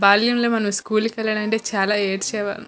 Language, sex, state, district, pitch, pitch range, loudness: Telugu, female, Andhra Pradesh, Visakhapatnam, 215 Hz, 200-220 Hz, -20 LUFS